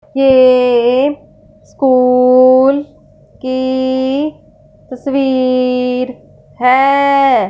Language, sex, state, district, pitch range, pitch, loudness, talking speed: Hindi, female, Punjab, Fazilka, 255-275 Hz, 260 Hz, -12 LUFS, 40 wpm